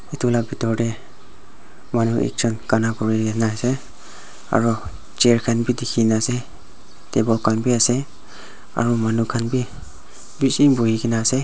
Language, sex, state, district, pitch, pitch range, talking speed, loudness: Nagamese, male, Nagaland, Dimapur, 115 Hz, 110-120 Hz, 150 wpm, -20 LUFS